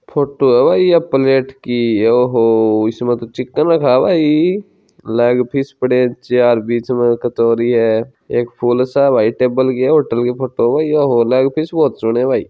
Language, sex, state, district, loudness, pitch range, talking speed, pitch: Hindi, male, Rajasthan, Churu, -14 LUFS, 120-140 Hz, 185 wpm, 125 Hz